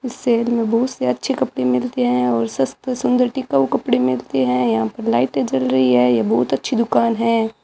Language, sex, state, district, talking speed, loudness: Hindi, male, Rajasthan, Bikaner, 210 wpm, -18 LUFS